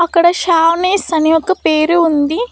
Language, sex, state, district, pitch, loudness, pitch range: Telugu, female, Andhra Pradesh, Annamaya, 335 Hz, -13 LUFS, 320-360 Hz